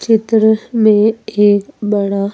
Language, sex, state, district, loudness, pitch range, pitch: Hindi, female, Madhya Pradesh, Bhopal, -13 LUFS, 205-225 Hz, 215 Hz